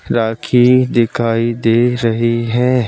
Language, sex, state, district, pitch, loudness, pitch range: Hindi, male, Madhya Pradesh, Bhopal, 120 Hz, -14 LUFS, 115-125 Hz